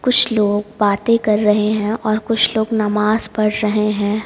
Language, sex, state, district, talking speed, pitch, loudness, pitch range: Hindi, female, Haryana, Jhajjar, 185 wpm, 215 Hz, -16 LUFS, 210-220 Hz